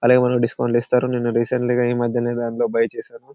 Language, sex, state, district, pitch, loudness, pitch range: Telugu, male, Telangana, Karimnagar, 120 Hz, -20 LUFS, 120-125 Hz